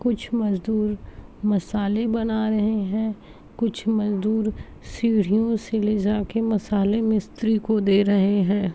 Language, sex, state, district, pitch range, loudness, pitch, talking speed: Hindi, female, Uttar Pradesh, Muzaffarnagar, 205-220 Hz, -23 LUFS, 215 Hz, 125 wpm